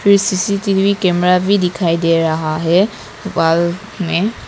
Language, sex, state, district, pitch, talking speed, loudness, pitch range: Hindi, female, Arunachal Pradesh, Papum Pare, 180 Hz, 135 wpm, -15 LUFS, 165-200 Hz